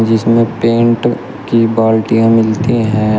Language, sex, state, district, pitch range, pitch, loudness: Hindi, male, Uttar Pradesh, Shamli, 110-115 Hz, 115 Hz, -12 LUFS